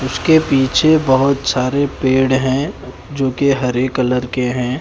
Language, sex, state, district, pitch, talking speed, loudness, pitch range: Hindi, male, Haryana, Charkhi Dadri, 130 Hz, 150 wpm, -15 LUFS, 125-140 Hz